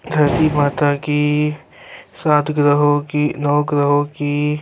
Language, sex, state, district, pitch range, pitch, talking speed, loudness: Urdu, male, Bihar, Saharsa, 145-150 Hz, 150 Hz, 115 wpm, -17 LUFS